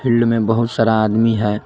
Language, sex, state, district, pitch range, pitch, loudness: Hindi, male, Jharkhand, Garhwa, 110-115 Hz, 115 Hz, -16 LUFS